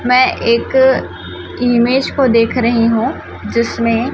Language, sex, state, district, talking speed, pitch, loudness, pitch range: Hindi, female, Chhattisgarh, Raipur, 115 wpm, 240 Hz, -14 LUFS, 235-260 Hz